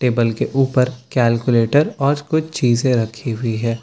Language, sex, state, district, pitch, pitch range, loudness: Hindi, male, Bihar, Katihar, 125 Hz, 115-135 Hz, -18 LUFS